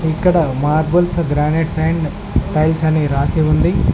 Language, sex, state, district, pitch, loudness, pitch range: Telugu, male, Telangana, Mahabubabad, 155 Hz, -16 LUFS, 150-165 Hz